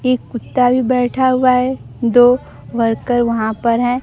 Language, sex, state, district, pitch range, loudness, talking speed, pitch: Hindi, female, Bihar, Kaimur, 235-255 Hz, -15 LUFS, 165 wpm, 245 Hz